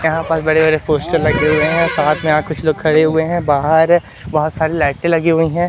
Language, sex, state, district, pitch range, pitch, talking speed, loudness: Hindi, male, Madhya Pradesh, Katni, 155-165 Hz, 160 Hz, 255 wpm, -15 LUFS